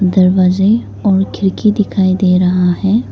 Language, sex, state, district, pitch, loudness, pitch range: Hindi, female, Arunachal Pradesh, Lower Dibang Valley, 190 Hz, -12 LUFS, 185-205 Hz